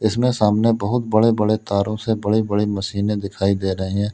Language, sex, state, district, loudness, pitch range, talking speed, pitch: Hindi, male, Uttar Pradesh, Lalitpur, -19 LUFS, 100-110 Hz, 205 wpm, 105 Hz